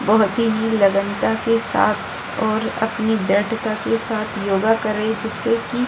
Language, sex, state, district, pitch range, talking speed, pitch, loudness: Hindi, female, Bihar, Kishanganj, 210-225 Hz, 165 wpm, 220 Hz, -20 LUFS